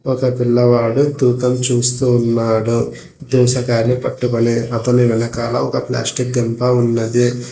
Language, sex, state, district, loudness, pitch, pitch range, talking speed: Telugu, male, Telangana, Hyderabad, -16 LUFS, 120 Hz, 115-125 Hz, 105 wpm